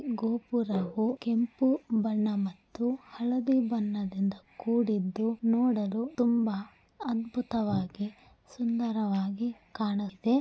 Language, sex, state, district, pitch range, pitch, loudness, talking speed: Kannada, female, Karnataka, Bellary, 205-240 Hz, 230 Hz, -30 LUFS, 70 wpm